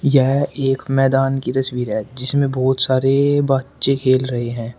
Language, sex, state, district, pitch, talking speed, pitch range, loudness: Hindi, male, Uttar Pradesh, Shamli, 135 Hz, 165 wpm, 130-135 Hz, -18 LUFS